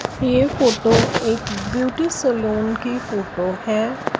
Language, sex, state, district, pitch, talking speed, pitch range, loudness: Hindi, female, Punjab, Fazilka, 230 Hz, 115 wpm, 215-255 Hz, -20 LUFS